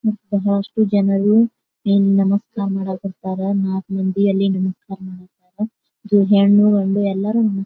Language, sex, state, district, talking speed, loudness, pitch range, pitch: Kannada, female, Karnataka, Bijapur, 110 wpm, -18 LUFS, 195-205 Hz, 200 Hz